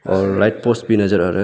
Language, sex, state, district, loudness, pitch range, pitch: Hindi, male, Arunachal Pradesh, Lower Dibang Valley, -17 LUFS, 95-110 Hz, 105 Hz